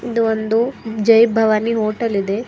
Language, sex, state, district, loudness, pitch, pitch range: Kannada, female, Karnataka, Bidar, -17 LUFS, 225 Hz, 215-230 Hz